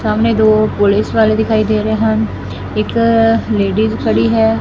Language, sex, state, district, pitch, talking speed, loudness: Punjabi, female, Punjab, Fazilka, 215 Hz, 155 wpm, -13 LUFS